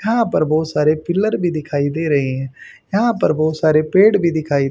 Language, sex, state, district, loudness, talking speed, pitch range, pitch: Hindi, male, Haryana, Rohtak, -17 LUFS, 215 wpm, 150-190 Hz, 155 Hz